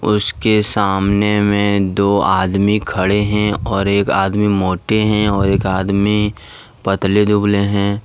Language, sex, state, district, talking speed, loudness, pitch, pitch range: Hindi, male, Jharkhand, Deoghar, 135 wpm, -15 LUFS, 100 Hz, 95-105 Hz